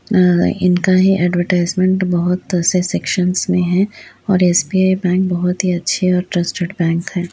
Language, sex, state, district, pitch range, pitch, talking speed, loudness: Hindi, female, Uttar Pradesh, Budaun, 175-185 Hz, 180 Hz, 155 wpm, -15 LUFS